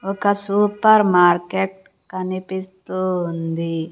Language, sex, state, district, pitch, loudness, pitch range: Telugu, female, Andhra Pradesh, Sri Satya Sai, 185 Hz, -19 LUFS, 175-195 Hz